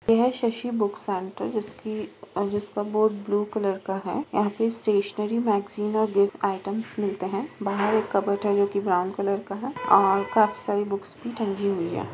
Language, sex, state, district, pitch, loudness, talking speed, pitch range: Hindi, female, Bihar, Saran, 205 Hz, -26 LUFS, 200 wpm, 200-215 Hz